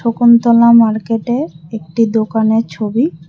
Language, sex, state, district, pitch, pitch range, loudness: Bengali, female, Tripura, West Tripura, 225 Hz, 220-235 Hz, -12 LUFS